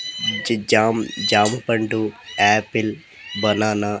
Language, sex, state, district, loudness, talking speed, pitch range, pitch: Telugu, female, Andhra Pradesh, Sri Satya Sai, -20 LUFS, 90 wpm, 105-110 Hz, 110 Hz